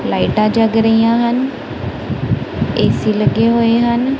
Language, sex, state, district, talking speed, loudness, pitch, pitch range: Punjabi, female, Punjab, Kapurthala, 115 wpm, -15 LUFS, 230 Hz, 225-235 Hz